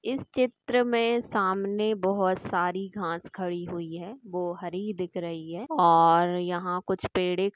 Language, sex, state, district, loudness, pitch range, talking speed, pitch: Hindi, female, Chhattisgarh, Sukma, -27 LUFS, 175-200 Hz, 160 wpm, 180 Hz